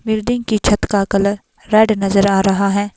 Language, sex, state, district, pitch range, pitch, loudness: Hindi, female, Himachal Pradesh, Shimla, 195-220 Hz, 200 Hz, -15 LUFS